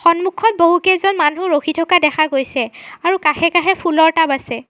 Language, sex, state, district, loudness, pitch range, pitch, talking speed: Assamese, female, Assam, Sonitpur, -15 LUFS, 300-365 Hz, 335 Hz, 155 wpm